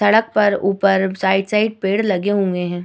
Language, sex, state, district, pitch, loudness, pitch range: Hindi, female, Uttar Pradesh, Muzaffarnagar, 195 Hz, -17 LUFS, 190-210 Hz